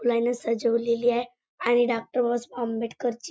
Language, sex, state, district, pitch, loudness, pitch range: Marathi, female, Maharashtra, Chandrapur, 240 Hz, -26 LUFS, 235-245 Hz